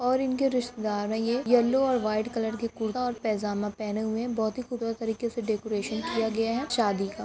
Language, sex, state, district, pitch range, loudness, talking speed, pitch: Hindi, female, Jharkhand, Sahebganj, 215-245 Hz, -28 LUFS, 225 wpm, 225 Hz